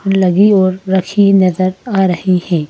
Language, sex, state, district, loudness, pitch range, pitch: Hindi, female, Madhya Pradesh, Bhopal, -12 LUFS, 185-195 Hz, 190 Hz